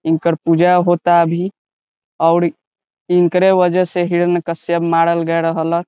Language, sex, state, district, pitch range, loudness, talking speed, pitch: Bhojpuri, male, Bihar, Saran, 165-175 Hz, -15 LUFS, 130 wpm, 170 Hz